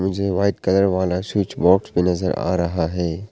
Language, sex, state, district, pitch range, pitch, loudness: Hindi, male, Arunachal Pradesh, Papum Pare, 90-100 Hz, 95 Hz, -20 LUFS